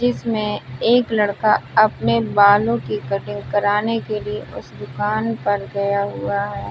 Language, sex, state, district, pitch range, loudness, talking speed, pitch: Hindi, female, Uttar Pradesh, Budaun, 155-215 Hz, -19 LUFS, 145 wpm, 205 Hz